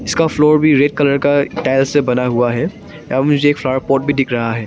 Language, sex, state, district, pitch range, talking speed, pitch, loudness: Hindi, male, Arunachal Pradesh, Papum Pare, 130-145 Hz, 245 wpm, 140 Hz, -14 LUFS